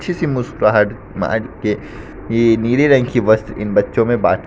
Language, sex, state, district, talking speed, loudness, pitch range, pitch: Hindi, male, Bihar, Katihar, 185 wpm, -16 LUFS, 105-125 Hz, 115 Hz